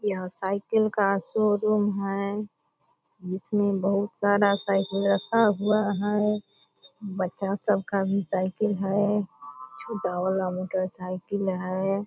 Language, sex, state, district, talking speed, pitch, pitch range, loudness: Hindi, female, Bihar, Purnia, 110 wpm, 195 Hz, 185-205 Hz, -26 LUFS